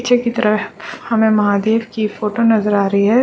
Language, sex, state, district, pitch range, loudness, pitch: Hindi, female, Uttarakhand, Uttarkashi, 210-230 Hz, -16 LUFS, 220 Hz